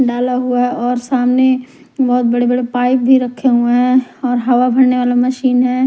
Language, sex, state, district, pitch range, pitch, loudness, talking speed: Hindi, female, Bihar, Katihar, 245-255 Hz, 250 Hz, -14 LUFS, 185 wpm